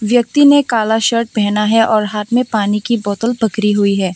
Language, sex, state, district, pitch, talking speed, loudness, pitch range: Hindi, female, Tripura, West Tripura, 220 Hz, 215 wpm, -14 LUFS, 210-235 Hz